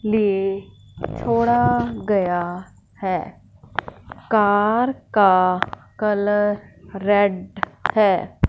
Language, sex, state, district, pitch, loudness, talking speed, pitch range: Hindi, male, Punjab, Fazilka, 205 Hz, -20 LUFS, 65 wpm, 185-210 Hz